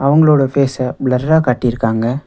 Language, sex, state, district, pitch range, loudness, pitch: Tamil, male, Tamil Nadu, Nilgiris, 125-140 Hz, -14 LUFS, 130 Hz